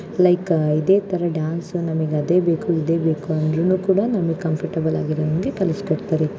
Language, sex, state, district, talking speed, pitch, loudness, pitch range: Kannada, female, Karnataka, Shimoga, 140 wpm, 165 Hz, -20 LUFS, 155-180 Hz